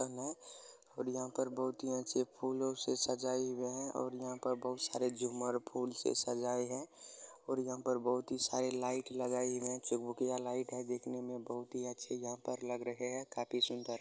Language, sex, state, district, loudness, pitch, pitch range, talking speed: Hindi, male, Bihar, Bhagalpur, -39 LUFS, 125 Hz, 125-130 Hz, 190 wpm